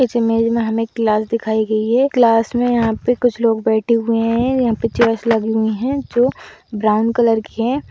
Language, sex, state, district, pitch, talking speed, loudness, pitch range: Hindi, female, Uttar Pradesh, Budaun, 230 Hz, 210 wpm, -17 LUFS, 225-240 Hz